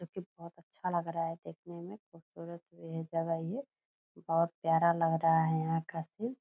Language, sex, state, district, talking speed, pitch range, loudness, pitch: Hindi, female, Bihar, Purnia, 215 wpm, 165-175 Hz, -33 LUFS, 165 Hz